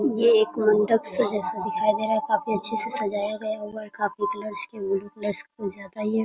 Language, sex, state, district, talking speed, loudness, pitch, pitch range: Hindi, female, Bihar, Muzaffarpur, 280 wpm, -22 LUFS, 215 Hz, 205-220 Hz